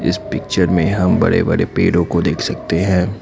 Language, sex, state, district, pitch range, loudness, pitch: Hindi, male, Assam, Kamrup Metropolitan, 90-95 Hz, -16 LUFS, 90 Hz